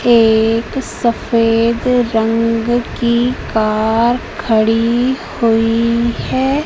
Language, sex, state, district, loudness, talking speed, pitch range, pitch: Hindi, female, Madhya Pradesh, Katni, -14 LUFS, 70 wpm, 225-240 Hz, 230 Hz